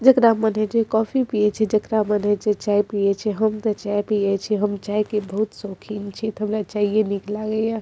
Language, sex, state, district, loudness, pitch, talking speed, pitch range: Maithili, female, Bihar, Madhepura, -21 LUFS, 210 Hz, 255 wpm, 205-220 Hz